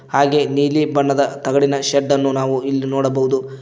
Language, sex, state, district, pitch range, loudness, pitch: Kannada, male, Karnataka, Koppal, 135-140 Hz, -17 LUFS, 140 Hz